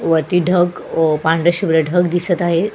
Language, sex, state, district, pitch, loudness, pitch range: Marathi, female, Goa, North and South Goa, 175 Hz, -16 LUFS, 160-175 Hz